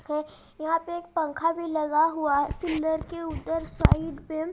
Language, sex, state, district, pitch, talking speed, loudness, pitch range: Hindi, female, Haryana, Jhajjar, 320 Hz, 170 wpm, -27 LUFS, 310-330 Hz